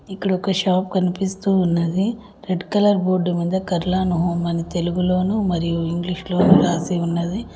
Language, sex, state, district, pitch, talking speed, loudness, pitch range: Telugu, female, Telangana, Mahabubabad, 180 Hz, 135 wpm, -20 LUFS, 175-190 Hz